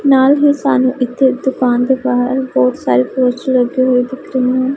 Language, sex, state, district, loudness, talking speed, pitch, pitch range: Punjabi, female, Punjab, Pathankot, -14 LUFS, 190 wpm, 255 Hz, 250-265 Hz